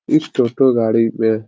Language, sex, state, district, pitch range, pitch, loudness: Hindi, male, Bihar, Supaul, 110-130 Hz, 115 Hz, -16 LUFS